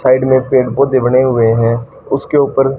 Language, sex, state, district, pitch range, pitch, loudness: Hindi, female, Haryana, Charkhi Dadri, 125-135 Hz, 130 Hz, -12 LUFS